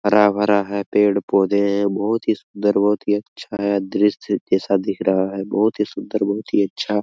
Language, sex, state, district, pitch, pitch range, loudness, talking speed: Hindi, male, Jharkhand, Sahebganj, 100 Hz, 100-105 Hz, -19 LUFS, 195 wpm